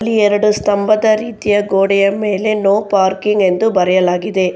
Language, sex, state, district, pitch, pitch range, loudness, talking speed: Kannada, female, Karnataka, Bangalore, 205 Hz, 195-215 Hz, -14 LUFS, 120 wpm